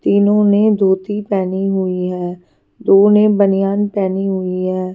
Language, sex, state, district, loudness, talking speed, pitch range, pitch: Hindi, female, Haryana, Charkhi Dadri, -15 LUFS, 145 wpm, 185-205 Hz, 195 Hz